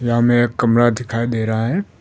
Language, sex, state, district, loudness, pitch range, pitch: Hindi, male, Arunachal Pradesh, Papum Pare, -17 LUFS, 115-120 Hz, 120 Hz